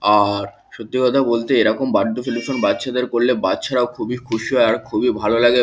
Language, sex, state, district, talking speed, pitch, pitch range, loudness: Bengali, male, West Bengal, Kolkata, 200 wpm, 120 Hz, 110-125 Hz, -18 LUFS